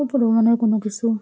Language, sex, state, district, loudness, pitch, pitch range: Bengali, female, West Bengal, Jalpaiguri, -19 LUFS, 225 Hz, 220-235 Hz